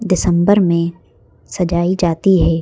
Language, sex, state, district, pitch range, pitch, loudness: Hindi, female, Madhya Pradesh, Bhopal, 165-185 Hz, 170 Hz, -15 LUFS